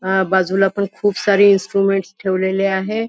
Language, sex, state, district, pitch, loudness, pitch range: Marathi, female, Maharashtra, Nagpur, 195 Hz, -16 LUFS, 190-200 Hz